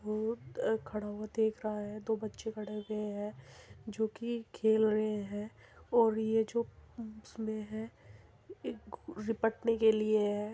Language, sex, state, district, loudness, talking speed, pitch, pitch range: Hindi, female, Uttar Pradesh, Muzaffarnagar, -34 LUFS, 130 wpm, 220 Hz, 210-225 Hz